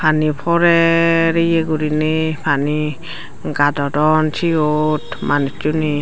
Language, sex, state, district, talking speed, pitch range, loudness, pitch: Chakma, female, Tripura, Dhalai, 80 wpm, 150-165 Hz, -16 LUFS, 155 Hz